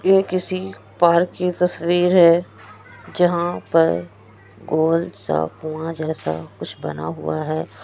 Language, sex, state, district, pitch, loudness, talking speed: Hindi, female, Bihar, Kishanganj, 160 Hz, -20 LUFS, 120 wpm